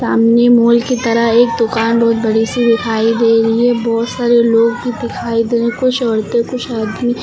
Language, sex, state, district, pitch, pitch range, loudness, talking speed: Hindi, female, Uttar Pradesh, Lucknow, 235 Hz, 230-240 Hz, -13 LUFS, 200 wpm